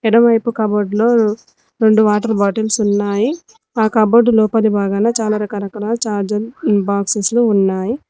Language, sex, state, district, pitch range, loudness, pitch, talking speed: Telugu, female, Telangana, Mahabubabad, 205-230 Hz, -15 LUFS, 220 Hz, 135 wpm